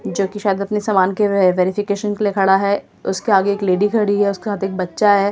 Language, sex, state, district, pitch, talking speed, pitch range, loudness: Hindi, female, Delhi, New Delhi, 200 Hz, 260 wpm, 195-205 Hz, -17 LUFS